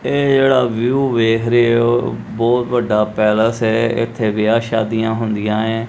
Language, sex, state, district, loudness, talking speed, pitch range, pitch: Punjabi, male, Punjab, Kapurthala, -16 LUFS, 155 wpm, 110-120 Hz, 115 Hz